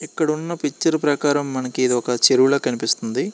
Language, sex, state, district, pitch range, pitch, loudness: Telugu, male, Andhra Pradesh, Srikakulam, 130-155 Hz, 145 Hz, -19 LUFS